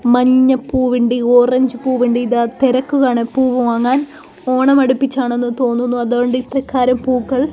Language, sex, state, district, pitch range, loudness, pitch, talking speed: Malayalam, female, Kerala, Kozhikode, 245-260 Hz, -15 LUFS, 255 Hz, 120 wpm